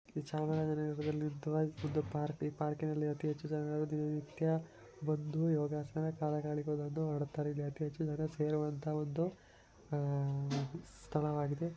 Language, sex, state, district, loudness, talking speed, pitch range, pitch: Kannada, male, Karnataka, Chamarajanagar, -38 LUFS, 100 wpm, 150-155 Hz, 150 Hz